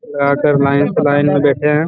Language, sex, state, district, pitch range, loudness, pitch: Hindi, male, Chhattisgarh, Raigarh, 140-150 Hz, -13 LUFS, 145 Hz